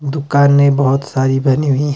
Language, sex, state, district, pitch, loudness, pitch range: Hindi, male, Himachal Pradesh, Shimla, 140 Hz, -13 LUFS, 135-140 Hz